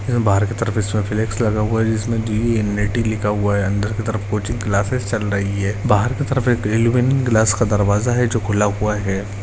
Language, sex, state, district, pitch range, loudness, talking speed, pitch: Hindi, male, Uttarakhand, Uttarkashi, 105-115 Hz, -19 LUFS, 215 wpm, 110 Hz